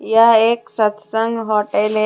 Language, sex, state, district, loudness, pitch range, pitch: Hindi, female, Jharkhand, Deoghar, -16 LUFS, 215-230 Hz, 220 Hz